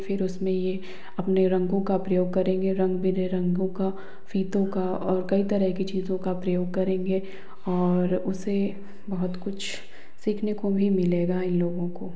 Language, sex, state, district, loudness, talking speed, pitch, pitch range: Hindi, female, Bihar, Lakhisarai, -26 LUFS, 160 wpm, 190 Hz, 185-195 Hz